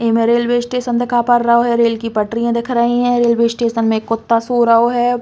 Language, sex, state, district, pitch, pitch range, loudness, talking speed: Bundeli, female, Uttar Pradesh, Hamirpur, 235 Hz, 230-240 Hz, -15 LUFS, 255 wpm